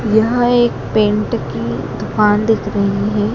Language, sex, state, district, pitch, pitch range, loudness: Hindi, female, Madhya Pradesh, Dhar, 215 Hz, 210-225 Hz, -16 LUFS